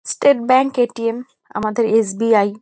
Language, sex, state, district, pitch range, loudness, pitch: Bengali, female, West Bengal, North 24 Parganas, 215-250 Hz, -17 LUFS, 230 Hz